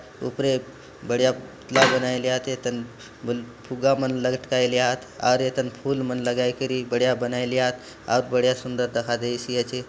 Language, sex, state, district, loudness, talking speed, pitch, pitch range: Halbi, male, Chhattisgarh, Bastar, -24 LUFS, 175 wpm, 125 Hz, 125-130 Hz